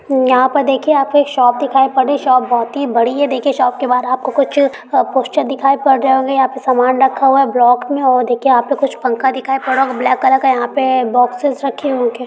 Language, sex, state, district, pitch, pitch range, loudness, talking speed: Hindi, female, Bihar, Gaya, 265 Hz, 255-275 Hz, -13 LUFS, 245 wpm